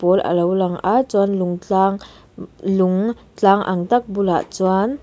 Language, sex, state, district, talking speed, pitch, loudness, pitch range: Mizo, female, Mizoram, Aizawl, 180 wpm, 190 Hz, -18 LUFS, 185-200 Hz